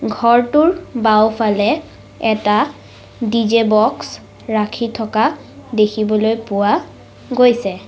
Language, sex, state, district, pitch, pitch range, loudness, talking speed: Assamese, female, Assam, Sonitpur, 220 Hz, 215-240 Hz, -16 LUFS, 75 wpm